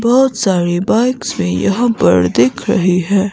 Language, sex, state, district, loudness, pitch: Hindi, female, Himachal Pradesh, Shimla, -14 LUFS, 185 Hz